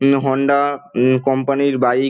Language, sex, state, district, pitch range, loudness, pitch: Bengali, male, West Bengal, Dakshin Dinajpur, 130-140 Hz, -17 LUFS, 135 Hz